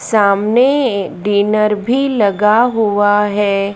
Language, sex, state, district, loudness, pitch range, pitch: Hindi, female, Madhya Pradesh, Dhar, -13 LUFS, 205-225 Hz, 210 Hz